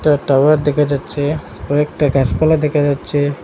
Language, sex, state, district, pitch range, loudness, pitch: Bengali, male, Assam, Hailakandi, 145-150 Hz, -15 LUFS, 145 Hz